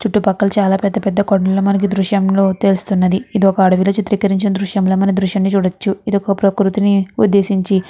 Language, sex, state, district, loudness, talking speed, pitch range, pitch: Telugu, female, Andhra Pradesh, Guntur, -15 LUFS, 180 wpm, 195-200 Hz, 195 Hz